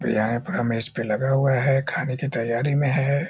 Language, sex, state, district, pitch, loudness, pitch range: Hindi, male, Bihar, Jahanabad, 135 Hz, -23 LUFS, 115-140 Hz